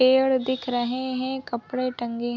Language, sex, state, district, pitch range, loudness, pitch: Hindi, female, Chhattisgarh, Bilaspur, 240-260 Hz, -25 LUFS, 255 Hz